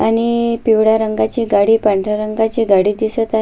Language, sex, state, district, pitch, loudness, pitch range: Marathi, female, Maharashtra, Sindhudurg, 220 Hz, -15 LUFS, 210-225 Hz